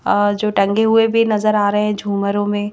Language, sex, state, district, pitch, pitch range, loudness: Hindi, female, Madhya Pradesh, Bhopal, 210 Hz, 205-215 Hz, -16 LUFS